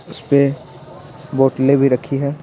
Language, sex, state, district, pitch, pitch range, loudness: Hindi, male, Bihar, Patna, 140 Hz, 135-140 Hz, -16 LUFS